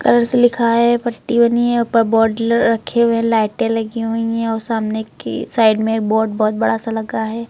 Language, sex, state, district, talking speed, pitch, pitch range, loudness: Hindi, female, Uttar Pradesh, Lucknow, 225 wpm, 230 Hz, 220-235 Hz, -16 LUFS